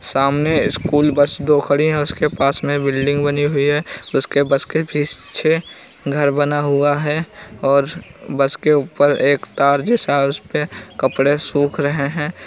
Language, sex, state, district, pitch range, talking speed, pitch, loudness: Bhojpuri, male, Uttar Pradesh, Gorakhpur, 140-150 Hz, 175 wpm, 145 Hz, -16 LUFS